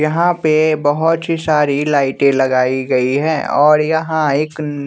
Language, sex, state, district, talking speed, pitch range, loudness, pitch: Hindi, male, Bihar, West Champaran, 160 wpm, 140-160 Hz, -15 LUFS, 150 Hz